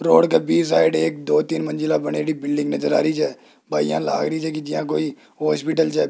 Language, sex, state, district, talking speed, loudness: Hindi, male, Rajasthan, Jaipur, 165 wpm, -21 LUFS